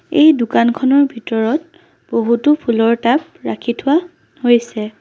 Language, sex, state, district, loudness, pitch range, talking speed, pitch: Assamese, female, Assam, Sonitpur, -15 LUFS, 235-300 Hz, 110 wpm, 245 Hz